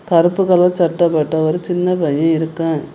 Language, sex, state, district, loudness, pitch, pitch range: Tamil, female, Tamil Nadu, Kanyakumari, -15 LUFS, 165 Hz, 160-180 Hz